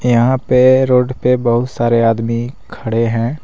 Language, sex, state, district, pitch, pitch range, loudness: Hindi, male, Jharkhand, Deoghar, 120 Hz, 115-125 Hz, -14 LUFS